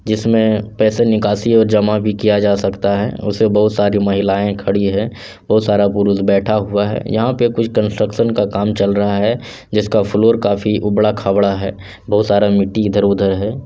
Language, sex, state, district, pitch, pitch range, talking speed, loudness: Hindi, male, Bihar, Sitamarhi, 105 Hz, 100-110 Hz, 180 wpm, -15 LUFS